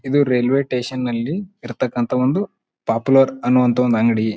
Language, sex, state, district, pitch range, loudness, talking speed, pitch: Kannada, male, Karnataka, Bijapur, 120-135 Hz, -18 LUFS, 135 wpm, 125 Hz